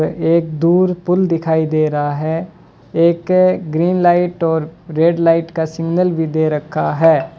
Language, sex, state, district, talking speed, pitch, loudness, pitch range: Hindi, male, Rajasthan, Bikaner, 155 wpm, 165 Hz, -15 LUFS, 160-175 Hz